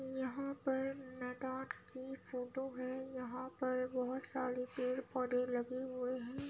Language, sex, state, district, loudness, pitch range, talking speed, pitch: Hindi, female, Uttar Pradesh, Budaun, -41 LUFS, 250-265 Hz, 130 wpm, 255 Hz